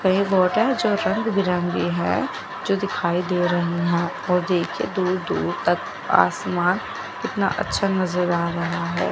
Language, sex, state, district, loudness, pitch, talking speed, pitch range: Hindi, female, Chandigarh, Chandigarh, -22 LUFS, 180 Hz, 160 wpm, 175-195 Hz